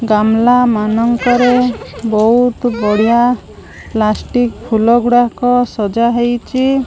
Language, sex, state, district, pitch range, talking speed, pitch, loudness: Odia, female, Odisha, Malkangiri, 220-245 Hz, 80 wpm, 235 Hz, -13 LUFS